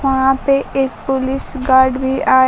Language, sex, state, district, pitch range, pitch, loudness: Hindi, female, Bihar, Kaimur, 260-270 Hz, 265 Hz, -15 LUFS